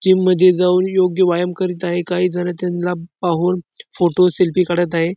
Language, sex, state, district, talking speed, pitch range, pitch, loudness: Marathi, male, Maharashtra, Dhule, 175 wpm, 175-185 Hz, 180 Hz, -17 LUFS